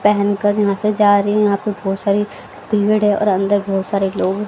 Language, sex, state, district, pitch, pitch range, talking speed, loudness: Hindi, female, Haryana, Rohtak, 205 Hz, 200-210 Hz, 225 wpm, -17 LUFS